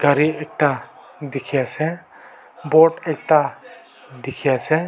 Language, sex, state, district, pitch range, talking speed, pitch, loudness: Nagamese, male, Nagaland, Kohima, 135-155 Hz, 100 wpm, 150 Hz, -19 LUFS